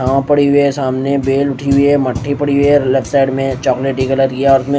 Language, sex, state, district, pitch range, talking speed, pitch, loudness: Hindi, male, Odisha, Nuapada, 135-140 Hz, 250 wpm, 135 Hz, -13 LUFS